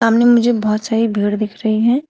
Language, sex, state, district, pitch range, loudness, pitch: Hindi, female, Uttar Pradesh, Shamli, 215-240 Hz, -15 LUFS, 225 Hz